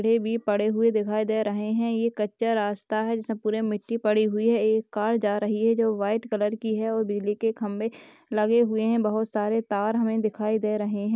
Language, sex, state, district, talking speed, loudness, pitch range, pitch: Hindi, female, Chhattisgarh, Jashpur, 230 wpm, -25 LUFS, 210-225 Hz, 220 Hz